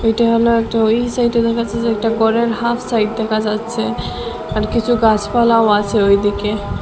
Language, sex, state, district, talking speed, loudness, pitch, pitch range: Bengali, female, Assam, Hailakandi, 160 wpm, -16 LUFS, 225 Hz, 215-235 Hz